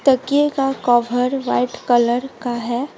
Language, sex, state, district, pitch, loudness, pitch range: Hindi, female, West Bengal, Alipurduar, 250 Hz, -18 LUFS, 240-270 Hz